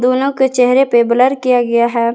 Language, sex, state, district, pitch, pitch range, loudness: Hindi, female, Jharkhand, Garhwa, 250 Hz, 235-265 Hz, -13 LUFS